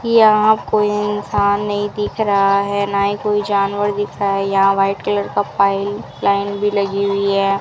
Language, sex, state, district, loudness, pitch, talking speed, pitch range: Hindi, female, Rajasthan, Bikaner, -17 LUFS, 200 Hz, 190 wpm, 200-205 Hz